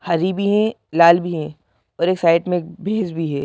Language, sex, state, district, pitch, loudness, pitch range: Hindi, male, Madhya Pradesh, Bhopal, 175 Hz, -18 LUFS, 165-185 Hz